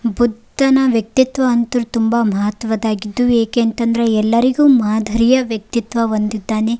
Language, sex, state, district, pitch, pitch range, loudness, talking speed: Kannada, female, Karnataka, Raichur, 230 Hz, 220-245 Hz, -16 LUFS, 95 wpm